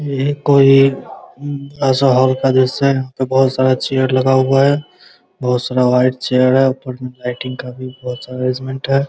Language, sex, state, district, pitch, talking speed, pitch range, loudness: Hindi, male, Bihar, Araria, 130 Hz, 190 wpm, 130-135 Hz, -15 LUFS